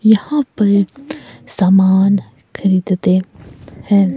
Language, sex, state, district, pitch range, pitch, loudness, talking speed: Hindi, female, Himachal Pradesh, Shimla, 190-220 Hz, 200 Hz, -14 LUFS, 70 wpm